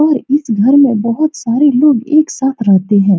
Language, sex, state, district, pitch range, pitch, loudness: Hindi, female, Bihar, Supaul, 225-295 Hz, 265 Hz, -11 LUFS